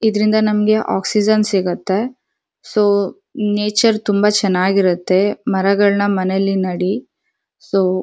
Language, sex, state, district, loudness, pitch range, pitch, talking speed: Kannada, female, Karnataka, Dharwad, -16 LUFS, 190-215 Hz, 205 Hz, 95 wpm